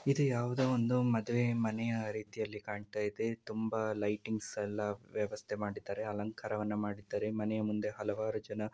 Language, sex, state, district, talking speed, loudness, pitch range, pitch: Kannada, male, Karnataka, Mysore, 130 wpm, -36 LUFS, 105-115 Hz, 110 Hz